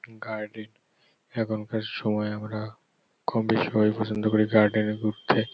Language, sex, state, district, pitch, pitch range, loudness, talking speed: Bengali, male, West Bengal, North 24 Parganas, 110 Hz, 105-110 Hz, -26 LUFS, 140 wpm